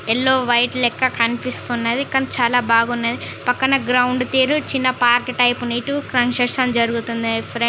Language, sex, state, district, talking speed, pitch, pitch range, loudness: Telugu, female, Andhra Pradesh, Chittoor, 130 wpm, 245 Hz, 235-255 Hz, -18 LUFS